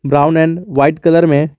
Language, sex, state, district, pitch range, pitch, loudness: Hindi, male, Jharkhand, Garhwa, 145-165 Hz, 155 Hz, -12 LUFS